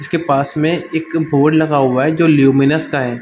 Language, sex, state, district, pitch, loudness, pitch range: Hindi, male, Bihar, Darbhanga, 150 Hz, -14 LUFS, 140-160 Hz